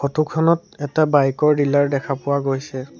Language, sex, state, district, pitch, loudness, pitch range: Assamese, male, Assam, Sonitpur, 145 Hz, -19 LUFS, 135-150 Hz